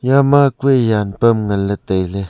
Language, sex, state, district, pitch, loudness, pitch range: Wancho, male, Arunachal Pradesh, Longding, 110 Hz, -15 LUFS, 100-135 Hz